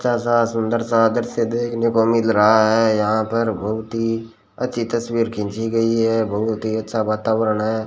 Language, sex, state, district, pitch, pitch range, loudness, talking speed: Hindi, male, Rajasthan, Bikaner, 115 Hz, 110-115 Hz, -19 LUFS, 185 wpm